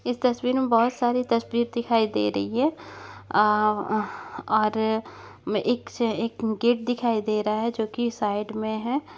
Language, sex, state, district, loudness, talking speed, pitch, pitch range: Hindi, female, Chhattisgarh, Bastar, -25 LUFS, 165 wpm, 230 Hz, 215-240 Hz